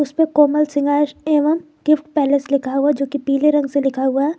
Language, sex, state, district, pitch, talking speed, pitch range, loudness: Hindi, female, Jharkhand, Garhwa, 290 Hz, 205 wpm, 280-300 Hz, -17 LUFS